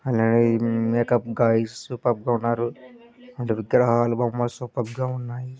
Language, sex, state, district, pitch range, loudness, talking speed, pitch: Telugu, male, Andhra Pradesh, Krishna, 115-125 Hz, -23 LUFS, 140 wpm, 120 Hz